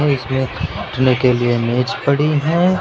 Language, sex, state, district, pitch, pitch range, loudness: Hindi, male, Uttar Pradesh, Lucknow, 130 Hz, 120-145 Hz, -17 LUFS